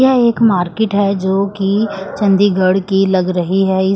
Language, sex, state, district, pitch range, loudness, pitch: Hindi, female, Chandigarh, Chandigarh, 190-205 Hz, -14 LUFS, 195 Hz